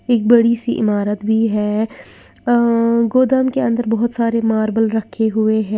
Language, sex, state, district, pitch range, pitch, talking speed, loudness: Hindi, female, Uttar Pradesh, Lalitpur, 220-235 Hz, 225 Hz, 165 wpm, -16 LUFS